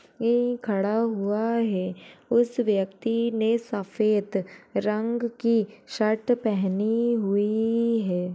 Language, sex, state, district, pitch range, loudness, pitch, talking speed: Hindi, female, Uttar Pradesh, Deoria, 205-235 Hz, -25 LUFS, 220 Hz, 100 wpm